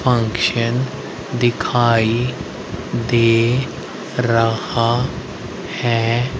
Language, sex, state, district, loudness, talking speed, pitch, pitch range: Hindi, male, Haryana, Rohtak, -18 LUFS, 45 wpm, 120 Hz, 115-125 Hz